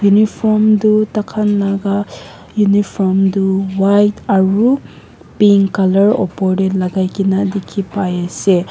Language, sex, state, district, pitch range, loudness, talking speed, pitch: Nagamese, female, Nagaland, Kohima, 190-210 Hz, -14 LUFS, 115 wpm, 200 Hz